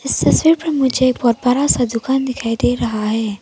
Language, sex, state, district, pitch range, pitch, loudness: Hindi, female, Arunachal Pradesh, Papum Pare, 230-265 Hz, 250 Hz, -16 LUFS